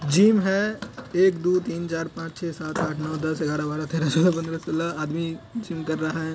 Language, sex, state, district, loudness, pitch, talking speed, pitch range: Hindi, male, Bihar, Madhepura, -25 LUFS, 165 Hz, 215 wpm, 155-175 Hz